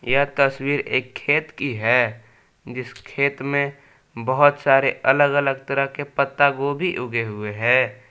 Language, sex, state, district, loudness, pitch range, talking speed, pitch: Hindi, male, Jharkhand, Palamu, -20 LUFS, 125-140 Hz, 150 wpm, 135 Hz